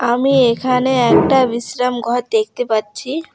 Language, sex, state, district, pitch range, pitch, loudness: Bengali, female, West Bengal, Alipurduar, 240-265 Hz, 250 Hz, -16 LUFS